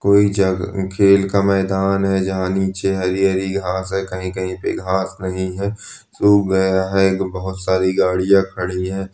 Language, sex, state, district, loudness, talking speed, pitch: Hindi, male, Chhattisgarh, Balrampur, -18 LUFS, 170 wpm, 95 Hz